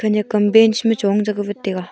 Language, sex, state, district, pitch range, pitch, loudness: Wancho, female, Arunachal Pradesh, Longding, 205-220 Hz, 210 Hz, -17 LUFS